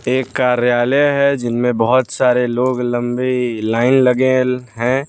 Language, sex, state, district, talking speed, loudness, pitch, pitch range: Hindi, male, Bihar, West Champaran, 130 wpm, -16 LUFS, 125 Hz, 120-130 Hz